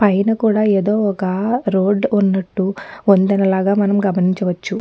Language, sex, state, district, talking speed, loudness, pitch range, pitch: Telugu, female, Telangana, Nalgonda, 110 wpm, -16 LUFS, 190-205 Hz, 200 Hz